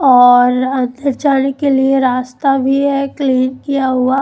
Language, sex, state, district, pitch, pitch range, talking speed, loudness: Hindi, female, Chandigarh, Chandigarh, 265 Hz, 255-275 Hz, 170 wpm, -13 LUFS